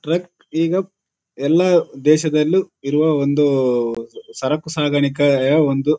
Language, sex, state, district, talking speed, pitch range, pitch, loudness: Kannada, male, Karnataka, Shimoga, 110 wpm, 140-170 Hz, 150 Hz, -18 LUFS